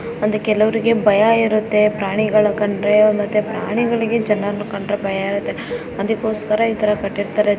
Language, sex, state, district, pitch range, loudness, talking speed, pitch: Kannada, female, Karnataka, Belgaum, 205-220 Hz, -18 LUFS, 120 wpm, 210 Hz